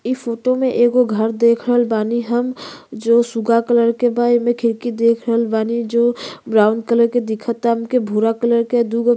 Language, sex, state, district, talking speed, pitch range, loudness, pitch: Bhojpuri, female, Uttar Pradesh, Gorakhpur, 195 wpm, 230-240 Hz, -17 LUFS, 235 Hz